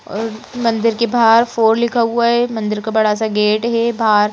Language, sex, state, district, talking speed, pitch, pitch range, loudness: Hindi, female, Madhya Pradesh, Bhopal, 210 wpm, 225 Hz, 215-235 Hz, -15 LUFS